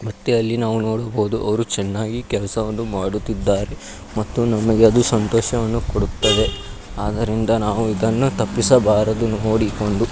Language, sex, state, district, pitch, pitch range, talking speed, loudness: Kannada, male, Karnataka, Dharwad, 110 Hz, 105-115 Hz, 105 wpm, -19 LUFS